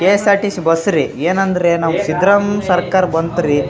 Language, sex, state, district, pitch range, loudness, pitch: Kannada, male, Karnataka, Raichur, 165-200 Hz, -15 LUFS, 180 Hz